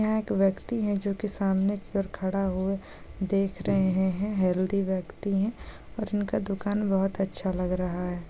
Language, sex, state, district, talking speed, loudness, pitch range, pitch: Hindi, female, Bihar, Jahanabad, 180 wpm, -28 LUFS, 190-205 Hz, 195 Hz